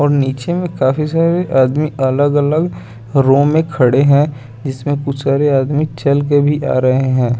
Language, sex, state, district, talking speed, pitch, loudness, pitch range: Hindi, male, Chandigarh, Chandigarh, 170 wpm, 140 Hz, -14 LUFS, 130-150 Hz